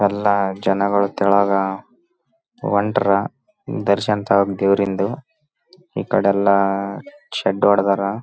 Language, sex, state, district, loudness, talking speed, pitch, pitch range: Kannada, male, Karnataka, Raichur, -19 LUFS, 90 wpm, 100 Hz, 100-125 Hz